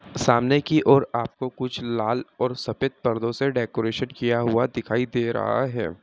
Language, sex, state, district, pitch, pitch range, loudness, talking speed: Hindi, male, Bihar, Madhepura, 120 Hz, 120-130 Hz, -24 LUFS, 170 wpm